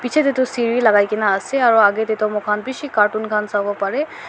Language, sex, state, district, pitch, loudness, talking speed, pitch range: Nagamese, female, Nagaland, Dimapur, 215 Hz, -18 LUFS, 250 wpm, 210-255 Hz